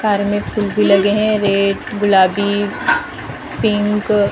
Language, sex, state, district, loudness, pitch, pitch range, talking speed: Hindi, female, Maharashtra, Gondia, -15 LUFS, 205 Hz, 200-210 Hz, 140 wpm